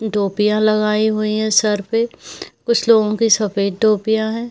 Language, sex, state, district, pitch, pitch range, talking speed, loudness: Hindi, female, Jharkhand, Jamtara, 215 Hz, 210-220 Hz, 160 wpm, -16 LUFS